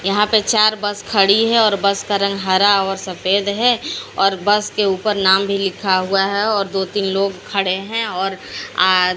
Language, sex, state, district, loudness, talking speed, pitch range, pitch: Hindi, female, Odisha, Sambalpur, -17 LUFS, 205 wpm, 190-205 Hz, 200 Hz